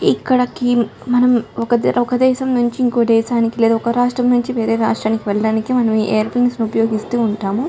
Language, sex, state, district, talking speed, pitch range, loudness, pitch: Telugu, female, Andhra Pradesh, Chittoor, 140 wpm, 225-245 Hz, -16 LUFS, 235 Hz